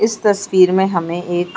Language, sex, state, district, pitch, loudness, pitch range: Hindi, female, Chhattisgarh, Sarguja, 185 Hz, -16 LUFS, 175-200 Hz